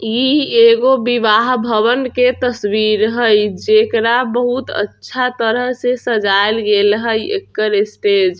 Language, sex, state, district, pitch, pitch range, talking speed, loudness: Bajjika, female, Bihar, Vaishali, 230 Hz, 215-250 Hz, 120 wpm, -14 LUFS